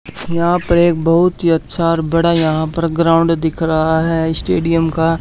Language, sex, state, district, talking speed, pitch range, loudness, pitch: Hindi, male, Haryana, Charkhi Dadri, 185 wpm, 160-170 Hz, -15 LUFS, 165 Hz